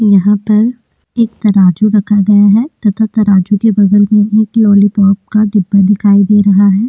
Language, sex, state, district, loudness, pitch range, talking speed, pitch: Hindi, female, Uttarakhand, Tehri Garhwal, -10 LUFS, 200-215 Hz, 175 wpm, 205 Hz